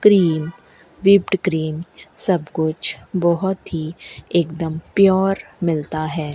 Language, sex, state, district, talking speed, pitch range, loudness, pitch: Hindi, female, Rajasthan, Bikaner, 115 wpm, 160-190 Hz, -19 LUFS, 170 Hz